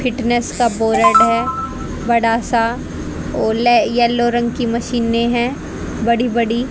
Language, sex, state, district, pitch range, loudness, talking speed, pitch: Hindi, female, Haryana, Rohtak, 230-240 Hz, -16 LUFS, 125 wpm, 240 Hz